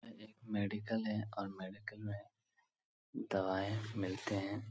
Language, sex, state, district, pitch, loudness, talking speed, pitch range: Hindi, male, Bihar, Supaul, 105 Hz, -41 LUFS, 125 wpm, 100-110 Hz